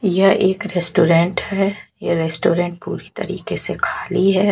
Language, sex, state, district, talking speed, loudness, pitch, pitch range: Hindi, female, Haryana, Jhajjar, 145 wpm, -18 LUFS, 190 Hz, 170-195 Hz